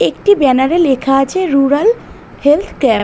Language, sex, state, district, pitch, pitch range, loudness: Bengali, female, West Bengal, North 24 Parganas, 290 Hz, 270-370 Hz, -12 LUFS